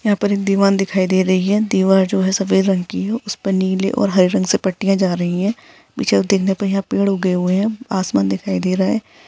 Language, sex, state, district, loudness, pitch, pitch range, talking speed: Hindi, female, Bihar, Jahanabad, -17 LUFS, 195 Hz, 185-200 Hz, 235 wpm